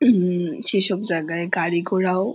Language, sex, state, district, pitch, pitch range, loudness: Bengali, female, West Bengal, Purulia, 185 Hz, 170-195 Hz, -19 LUFS